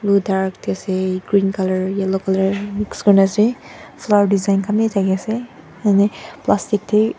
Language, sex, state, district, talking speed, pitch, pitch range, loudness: Nagamese, female, Nagaland, Dimapur, 175 wpm, 200 Hz, 190-210 Hz, -18 LUFS